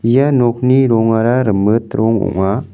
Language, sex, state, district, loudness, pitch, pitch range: Garo, male, Meghalaya, West Garo Hills, -13 LUFS, 115 Hz, 105-130 Hz